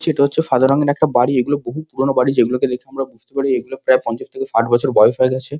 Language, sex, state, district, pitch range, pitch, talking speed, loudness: Bengali, male, West Bengal, Kolkata, 130-145 Hz, 135 Hz, 255 wpm, -17 LUFS